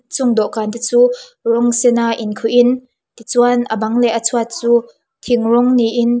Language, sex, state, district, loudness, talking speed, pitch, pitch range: Mizo, female, Mizoram, Aizawl, -15 LUFS, 195 wpm, 240 Hz, 230-245 Hz